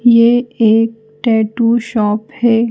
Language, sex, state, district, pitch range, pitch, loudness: Hindi, female, Madhya Pradesh, Bhopal, 220-235 Hz, 230 Hz, -14 LUFS